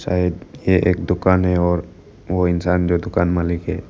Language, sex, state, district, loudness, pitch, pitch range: Hindi, male, Arunachal Pradesh, Lower Dibang Valley, -19 LUFS, 90 Hz, 85-90 Hz